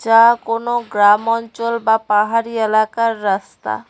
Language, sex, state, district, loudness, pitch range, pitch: Bengali, female, West Bengal, Cooch Behar, -16 LUFS, 210-230 Hz, 225 Hz